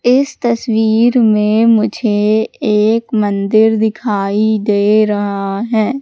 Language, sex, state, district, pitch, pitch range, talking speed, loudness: Hindi, female, Madhya Pradesh, Katni, 220 Hz, 210-230 Hz, 100 wpm, -13 LUFS